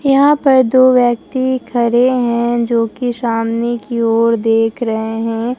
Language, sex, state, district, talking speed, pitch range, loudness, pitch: Hindi, female, Bihar, Katihar, 140 wpm, 230-255 Hz, -14 LUFS, 235 Hz